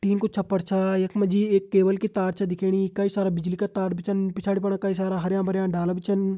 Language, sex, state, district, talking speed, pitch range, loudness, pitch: Hindi, male, Uttarakhand, Uttarkashi, 265 wpm, 190-200 Hz, -24 LUFS, 195 Hz